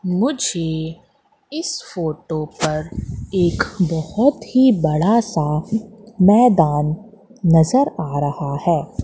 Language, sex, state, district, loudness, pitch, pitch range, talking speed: Hindi, female, Madhya Pradesh, Katni, -18 LUFS, 175 Hz, 155-225 Hz, 95 wpm